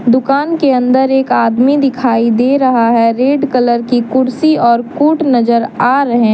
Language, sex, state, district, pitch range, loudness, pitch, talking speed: Hindi, female, Jharkhand, Deoghar, 235-275 Hz, -11 LUFS, 255 Hz, 180 wpm